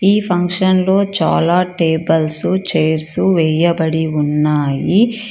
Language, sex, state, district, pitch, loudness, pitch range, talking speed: Telugu, female, Karnataka, Bangalore, 170 Hz, -15 LUFS, 160-190 Hz, 90 wpm